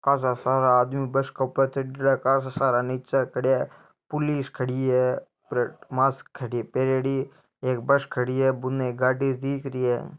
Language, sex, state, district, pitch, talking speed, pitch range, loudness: Marwari, male, Rajasthan, Nagaur, 130 Hz, 165 wpm, 125-135 Hz, -25 LUFS